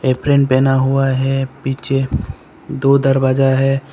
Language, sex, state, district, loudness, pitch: Hindi, male, Arunachal Pradesh, Papum Pare, -15 LUFS, 135 Hz